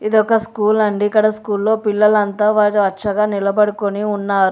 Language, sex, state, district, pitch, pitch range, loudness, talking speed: Telugu, female, Telangana, Hyderabad, 210 Hz, 205-215 Hz, -16 LUFS, 130 wpm